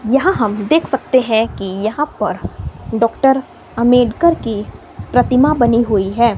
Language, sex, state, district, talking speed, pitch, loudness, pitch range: Hindi, female, Himachal Pradesh, Shimla, 140 wpm, 235 Hz, -15 LUFS, 220-265 Hz